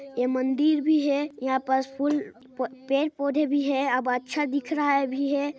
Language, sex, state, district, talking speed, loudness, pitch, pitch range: Hindi, male, Chhattisgarh, Sarguja, 170 wpm, -25 LUFS, 280 Hz, 260-290 Hz